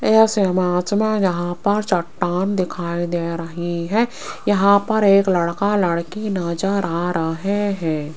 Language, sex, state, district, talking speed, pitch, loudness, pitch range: Hindi, female, Rajasthan, Jaipur, 140 wpm, 185 Hz, -19 LUFS, 170-205 Hz